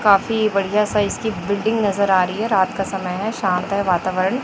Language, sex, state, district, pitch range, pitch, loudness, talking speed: Hindi, female, Chhattisgarh, Raipur, 190-215 Hz, 200 Hz, -19 LUFS, 215 wpm